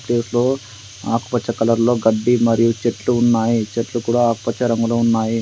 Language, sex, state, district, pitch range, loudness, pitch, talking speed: Telugu, male, Telangana, Adilabad, 115-120 Hz, -18 LUFS, 115 Hz, 135 wpm